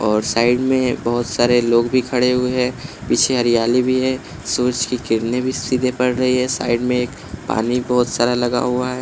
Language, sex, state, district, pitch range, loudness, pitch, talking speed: Hindi, male, Bihar, West Champaran, 120-125 Hz, -18 LUFS, 125 Hz, 205 wpm